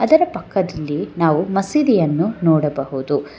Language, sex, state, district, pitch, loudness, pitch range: Kannada, female, Karnataka, Bangalore, 165 Hz, -18 LUFS, 150-210 Hz